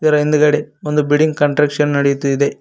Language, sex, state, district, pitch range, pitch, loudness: Kannada, male, Karnataka, Koppal, 145-150 Hz, 150 Hz, -15 LUFS